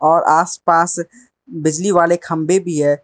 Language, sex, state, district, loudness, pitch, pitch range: Hindi, male, Arunachal Pradesh, Lower Dibang Valley, -16 LUFS, 170 Hz, 160-175 Hz